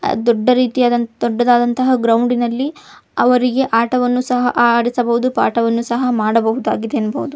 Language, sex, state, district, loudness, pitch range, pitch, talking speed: Kannada, female, Karnataka, Bijapur, -15 LUFS, 235-250 Hz, 240 Hz, 100 wpm